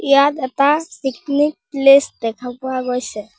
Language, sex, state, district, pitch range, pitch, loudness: Assamese, female, Assam, Sonitpur, 250-280 Hz, 270 Hz, -17 LUFS